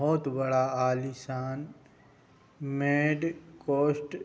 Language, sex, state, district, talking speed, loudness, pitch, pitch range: Hindi, male, Uttar Pradesh, Budaun, 85 wpm, -29 LUFS, 140 Hz, 130-150 Hz